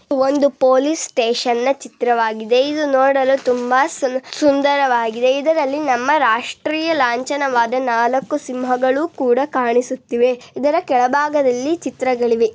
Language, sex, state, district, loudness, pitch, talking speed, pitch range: Kannada, female, Karnataka, Bellary, -17 LUFS, 260 Hz, 105 wpm, 245-285 Hz